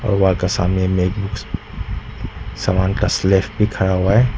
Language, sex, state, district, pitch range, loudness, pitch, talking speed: Hindi, male, Nagaland, Dimapur, 95-105 Hz, -18 LUFS, 95 Hz, 150 wpm